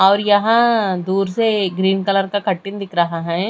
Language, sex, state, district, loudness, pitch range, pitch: Hindi, female, Chhattisgarh, Raipur, -17 LUFS, 185-205 Hz, 195 Hz